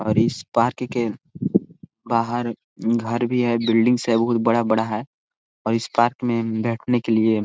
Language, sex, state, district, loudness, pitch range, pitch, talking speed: Hindi, male, Chhattisgarh, Korba, -22 LUFS, 115-120 Hz, 115 Hz, 160 wpm